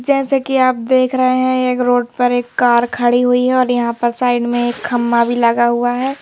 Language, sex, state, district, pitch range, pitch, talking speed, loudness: Hindi, female, Madhya Pradesh, Bhopal, 240-255 Hz, 245 Hz, 240 wpm, -15 LUFS